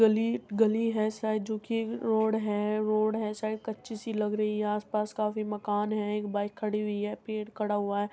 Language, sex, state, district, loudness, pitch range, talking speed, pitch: Hindi, female, Uttar Pradesh, Muzaffarnagar, -30 LUFS, 210-220 Hz, 220 wpm, 215 Hz